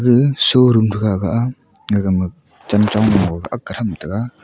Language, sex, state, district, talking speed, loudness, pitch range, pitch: Wancho, male, Arunachal Pradesh, Longding, 190 wpm, -16 LUFS, 95-120 Hz, 105 Hz